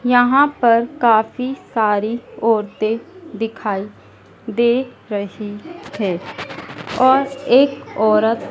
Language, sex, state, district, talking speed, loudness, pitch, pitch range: Hindi, female, Madhya Pradesh, Dhar, 85 wpm, -18 LUFS, 230 Hz, 215-255 Hz